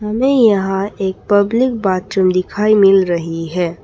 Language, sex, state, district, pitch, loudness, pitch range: Hindi, female, Arunachal Pradesh, Papum Pare, 195 Hz, -15 LUFS, 185-210 Hz